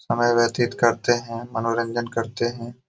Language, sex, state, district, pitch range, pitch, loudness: Hindi, male, Bihar, Jamui, 115-120 Hz, 120 Hz, -23 LUFS